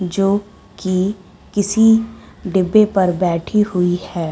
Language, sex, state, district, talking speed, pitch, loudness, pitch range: Hindi, female, Chhattisgarh, Bilaspur, 125 wpm, 195 Hz, -17 LUFS, 180-210 Hz